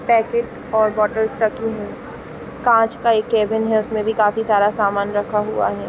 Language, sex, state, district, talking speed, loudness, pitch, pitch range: Hindi, female, Chhattisgarh, Raigarh, 195 wpm, -18 LUFS, 220 Hz, 210-225 Hz